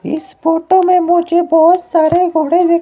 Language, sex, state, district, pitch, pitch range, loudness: Hindi, male, Himachal Pradesh, Shimla, 340 Hz, 325-355 Hz, -12 LUFS